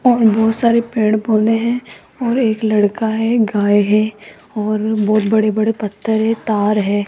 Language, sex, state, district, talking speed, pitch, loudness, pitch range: Hindi, female, Rajasthan, Jaipur, 170 wpm, 220 Hz, -16 LUFS, 210-225 Hz